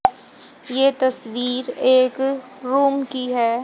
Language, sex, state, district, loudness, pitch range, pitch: Hindi, female, Haryana, Jhajjar, -20 LUFS, 250-270 Hz, 260 Hz